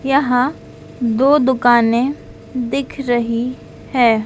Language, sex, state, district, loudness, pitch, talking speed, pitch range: Hindi, female, Madhya Pradesh, Dhar, -16 LUFS, 250 Hz, 85 wpm, 240-270 Hz